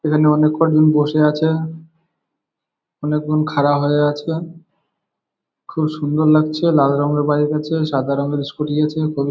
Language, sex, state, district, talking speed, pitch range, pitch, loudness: Bengali, male, West Bengal, Kolkata, 140 wpm, 145-155 Hz, 150 Hz, -17 LUFS